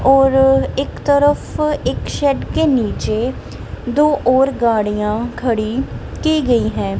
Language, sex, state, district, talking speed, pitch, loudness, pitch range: Hindi, female, Punjab, Kapurthala, 120 wpm, 265 Hz, -16 LUFS, 230-285 Hz